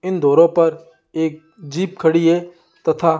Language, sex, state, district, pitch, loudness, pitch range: Hindi, male, Rajasthan, Jaisalmer, 165 Hz, -17 LUFS, 160-175 Hz